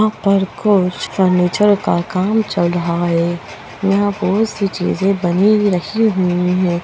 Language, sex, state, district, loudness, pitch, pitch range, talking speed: Hindi, female, Bihar, East Champaran, -16 LUFS, 190 Hz, 175-205 Hz, 160 wpm